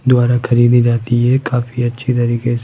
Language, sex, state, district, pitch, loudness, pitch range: Hindi, male, Rajasthan, Jaipur, 120 Hz, -14 LUFS, 120-125 Hz